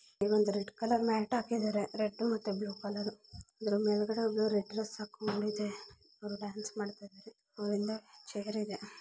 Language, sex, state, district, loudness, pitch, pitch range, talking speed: Kannada, female, Karnataka, Mysore, -35 LUFS, 210 Hz, 205-220 Hz, 120 wpm